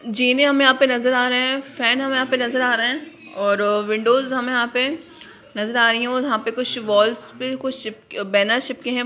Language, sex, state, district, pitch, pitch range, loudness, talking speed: Hindi, female, Bihar, Jamui, 250 Hz, 230-260 Hz, -19 LUFS, 245 wpm